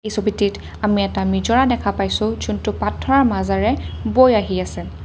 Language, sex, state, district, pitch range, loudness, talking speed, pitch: Assamese, female, Assam, Kamrup Metropolitan, 195-225 Hz, -19 LUFS, 155 wpm, 205 Hz